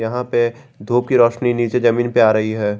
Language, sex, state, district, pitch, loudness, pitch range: Hindi, male, Jharkhand, Garhwa, 120 Hz, -17 LUFS, 110-125 Hz